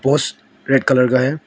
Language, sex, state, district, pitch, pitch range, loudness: Hindi, female, Arunachal Pradesh, Longding, 135 Hz, 130-140 Hz, -16 LUFS